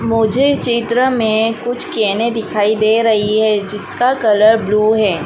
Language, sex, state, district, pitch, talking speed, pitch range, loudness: Hindi, female, Madhya Pradesh, Dhar, 220 Hz, 150 wpm, 215-235 Hz, -14 LUFS